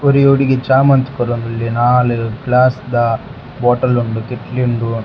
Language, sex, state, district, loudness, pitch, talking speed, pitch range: Tulu, male, Karnataka, Dakshina Kannada, -15 LUFS, 125 Hz, 140 wpm, 120-130 Hz